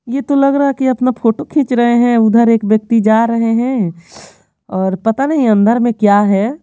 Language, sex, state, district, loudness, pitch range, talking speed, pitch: Hindi, female, Bihar, Patna, -13 LUFS, 215-255 Hz, 215 wpm, 230 Hz